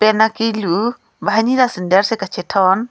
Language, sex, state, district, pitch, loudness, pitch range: Karbi, female, Assam, Karbi Anglong, 215 Hz, -16 LUFS, 190-225 Hz